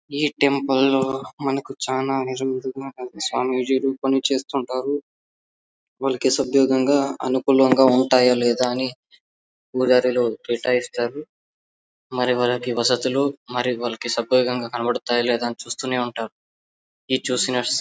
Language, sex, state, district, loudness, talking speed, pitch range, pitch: Telugu, male, Karnataka, Bellary, -21 LUFS, 100 wpm, 125-135 Hz, 130 Hz